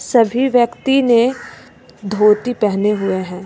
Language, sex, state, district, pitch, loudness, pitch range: Hindi, female, Jharkhand, Ranchi, 220 Hz, -15 LUFS, 205-245 Hz